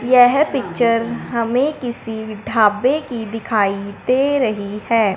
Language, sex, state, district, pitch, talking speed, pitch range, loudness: Hindi, male, Punjab, Fazilka, 230 Hz, 115 wpm, 215-255 Hz, -18 LUFS